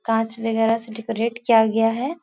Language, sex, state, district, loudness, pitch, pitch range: Hindi, female, Bihar, Supaul, -21 LUFS, 225 Hz, 225-230 Hz